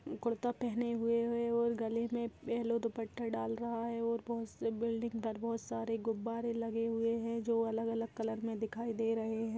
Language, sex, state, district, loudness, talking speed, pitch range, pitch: Hindi, female, Maharashtra, Aurangabad, -37 LUFS, 195 wpm, 225-235 Hz, 230 Hz